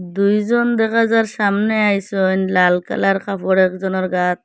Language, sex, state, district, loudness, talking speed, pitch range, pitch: Bengali, female, Assam, Hailakandi, -17 LUFS, 135 wpm, 185-215 Hz, 195 Hz